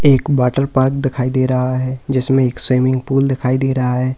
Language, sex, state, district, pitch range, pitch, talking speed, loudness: Hindi, male, Uttar Pradesh, Lalitpur, 125-135 Hz, 130 Hz, 215 wpm, -16 LUFS